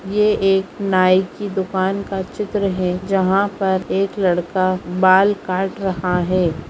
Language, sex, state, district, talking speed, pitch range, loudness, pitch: Hindi, female, Bihar, Vaishali, 145 wpm, 185-195 Hz, -18 LUFS, 190 Hz